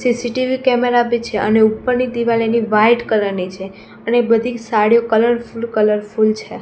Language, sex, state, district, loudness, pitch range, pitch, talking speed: Gujarati, female, Gujarat, Gandhinagar, -16 LUFS, 215-240 Hz, 230 Hz, 165 wpm